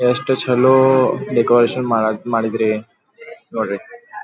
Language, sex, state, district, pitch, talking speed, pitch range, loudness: Kannada, male, Karnataka, Belgaum, 125 Hz, 70 wpm, 115-130 Hz, -16 LUFS